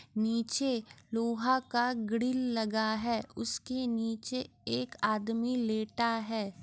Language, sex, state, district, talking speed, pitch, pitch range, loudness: Maithili, female, Bihar, Muzaffarpur, 110 wpm, 230 Hz, 220-245 Hz, -33 LUFS